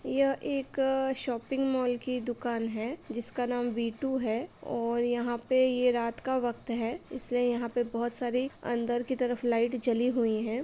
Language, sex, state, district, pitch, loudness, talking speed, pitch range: Hindi, female, Uttar Pradesh, Etah, 245 Hz, -30 LUFS, 185 wpm, 235-260 Hz